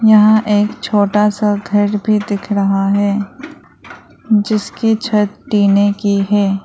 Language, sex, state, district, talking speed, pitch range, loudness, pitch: Hindi, female, Arunachal Pradesh, Lower Dibang Valley, 125 wpm, 200-215 Hz, -14 LUFS, 205 Hz